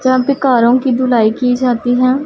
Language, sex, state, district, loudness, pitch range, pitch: Hindi, female, Punjab, Pathankot, -13 LUFS, 245-260 Hz, 250 Hz